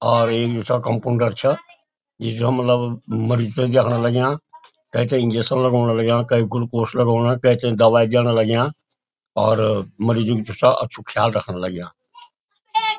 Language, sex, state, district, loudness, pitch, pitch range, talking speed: Garhwali, male, Uttarakhand, Uttarkashi, -19 LUFS, 120 Hz, 115-130 Hz, 150 wpm